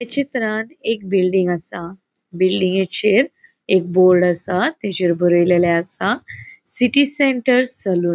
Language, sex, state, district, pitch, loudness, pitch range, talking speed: Konkani, female, Goa, North and South Goa, 190 Hz, -17 LUFS, 175-245 Hz, 120 wpm